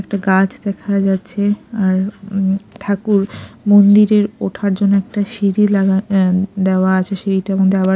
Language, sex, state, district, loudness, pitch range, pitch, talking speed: Bengali, female, Odisha, Khordha, -15 LUFS, 190-205 Hz, 195 Hz, 145 wpm